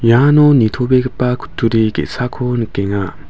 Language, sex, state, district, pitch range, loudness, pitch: Garo, male, Meghalaya, West Garo Hills, 110-125 Hz, -14 LUFS, 125 Hz